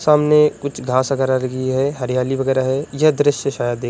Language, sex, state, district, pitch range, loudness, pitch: Hindi, male, Uttar Pradesh, Budaun, 130-145 Hz, -18 LUFS, 135 Hz